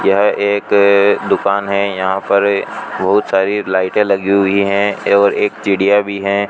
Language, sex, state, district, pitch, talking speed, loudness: Hindi, male, Rajasthan, Bikaner, 100 Hz, 155 wpm, -14 LUFS